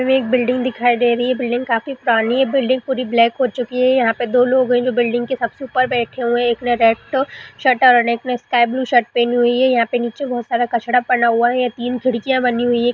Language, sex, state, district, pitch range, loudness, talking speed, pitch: Hindi, female, Bihar, Jahanabad, 240-255 Hz, -17 LUFS, 260 wpm, 245 Hz